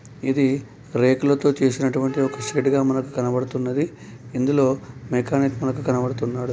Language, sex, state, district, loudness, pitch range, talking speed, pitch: Telugu, male, Telangana, Nalgonda, -22 LUFS, 125-140 Hz, 130 wpm, 130 Hz